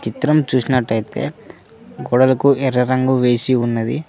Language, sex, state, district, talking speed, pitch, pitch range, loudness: Telugu, male, Telangana, Mahabubabad, 115 wpm, 130 Hz, 120-135 Hz, -17 LUFS